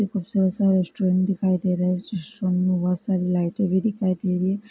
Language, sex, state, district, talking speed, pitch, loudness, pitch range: Hindi, female, Karnataka, Belgaum, 240 wpm, 185 Hz, -23 LUFS, 180-195 Hz